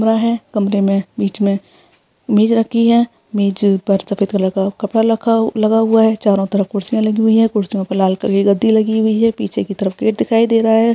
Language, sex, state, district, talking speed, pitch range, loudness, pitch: Hindi, female, Chhattisgarh, Rajnandgaon, 230 wpm, 200-225 Hz, -15 LUFS, 215 Hz